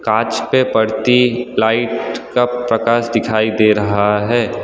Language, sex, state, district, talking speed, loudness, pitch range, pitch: Hindi, male, Gujarat, Valsad, 130 wpm, -15 LUFS, 110-120 Hz, 115 Hz